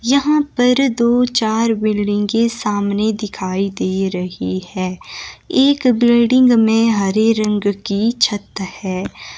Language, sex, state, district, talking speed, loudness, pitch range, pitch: Hindi, female, Himachal Pradesh, Shimla, 115 wpm, -16 LUFS, 200-240 Hz, 220 Hz